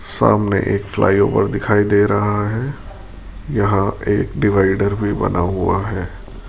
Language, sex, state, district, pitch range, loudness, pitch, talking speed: Hindi, male, Rajasthan, Jaipur, 95-105 Hz, -17 LUFS, 100 Hz, 140 wpm